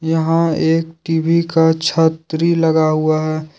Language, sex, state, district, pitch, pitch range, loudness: Hindi, male, Jharkhand, Deoghar, 160 Hz, 160-165 Hz, -16 LUFS